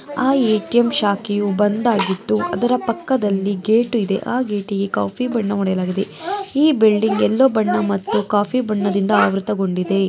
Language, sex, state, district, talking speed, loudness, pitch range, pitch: Kannada, female, Karnataka, Mysore, 125 wpm, -18 LUFS, 200-240 Hz, 210 Hz